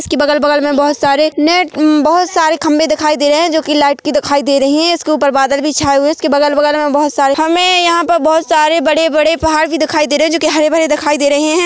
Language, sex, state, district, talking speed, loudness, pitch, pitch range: Hindi, female, Chhattisgarh, Korba, 290 wpm, -11 LUFS, 305 Hz, 290-320 Hz